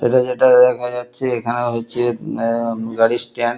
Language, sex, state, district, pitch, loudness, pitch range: Bengali, male, West Bengal, Kolkata, 120 Hz, -17 LUFS, 115-125 Hz